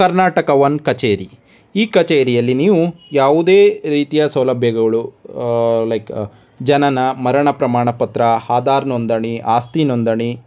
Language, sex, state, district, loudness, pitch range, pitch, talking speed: Kannada, male, Karnataka, Dharwad, -15 LUFS, 115-150 Hz, 130 Hz, 105 wpm